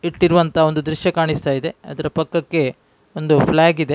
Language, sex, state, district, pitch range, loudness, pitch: Kannada, male, Karnataka, Dakshina Kannada, 155-170 Hz, -18 LUFS, 160 Hz